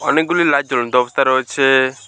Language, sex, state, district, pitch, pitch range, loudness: Bengali, male, West Bengal, Alipurduar, 130 Hz, 125-140 Hz, -15 LUFS